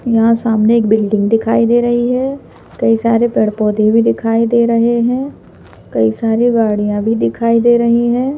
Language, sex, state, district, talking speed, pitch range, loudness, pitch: Hindi, female, Madhya Pradesh, Bhopal, 170 wpm, 215-235 Hz, -13 LUFS, 230 Hz